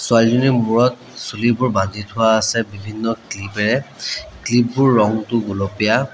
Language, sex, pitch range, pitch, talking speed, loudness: Assamese, male, 105-120 Hz, 115 Hz, 115 wpm, -18 LUFS